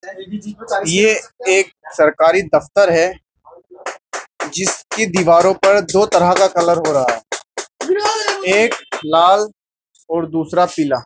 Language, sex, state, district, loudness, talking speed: Hindi, male, Uttar Pradesh, Jyotiba Phule Nagar, -15 LUFS, 115 wpm